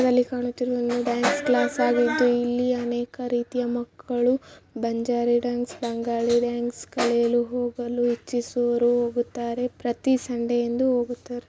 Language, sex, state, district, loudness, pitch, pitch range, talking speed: Kannada, female, Karnataka, Raichur, -24 LUFS, 240 Hz, 240-245 Hz, 100 wpm